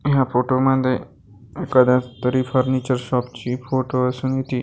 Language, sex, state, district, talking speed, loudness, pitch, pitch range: Marathi, male, Maharashtra, Gondia, 145 wpm, -20 LUFS, 130 Hz, 125-130 Hz